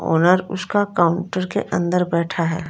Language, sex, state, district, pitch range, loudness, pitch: Hindi, female, Punjab, Fazilka, 170-185 Hz, -20 LUFS, 180 Hz